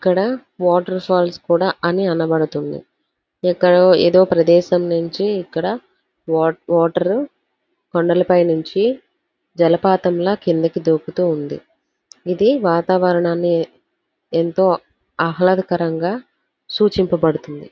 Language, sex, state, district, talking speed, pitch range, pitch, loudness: Telugu, female, Andhra Pradesh, Visakhapatnam, 80 wpm, 170-190 Hz, 180 Hz, -17 LUFS